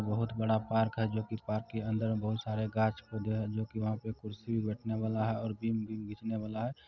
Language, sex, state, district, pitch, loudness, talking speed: Maithili, male, Bihar, Supaul, 110 Hz, -35 LUFS, 245 wpm